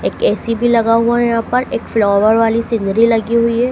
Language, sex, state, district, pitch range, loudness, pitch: Hindi, female, Madhya Pradesh, Dhar, 225-235 Hz, -14 LUFS, 230 Hz